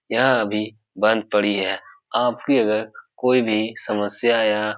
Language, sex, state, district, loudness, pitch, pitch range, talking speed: Hindi, male, Bihar, Supaul, -21 LUFS, 105 Hz, 105-110 Hz, 150 wpm